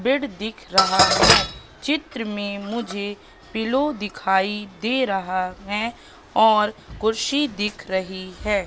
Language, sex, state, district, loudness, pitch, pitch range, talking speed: Hindi, female, Madhya Pradesh, Katni, -21 LUFS, 210 Hz, 190-235 Hz, 120 wpm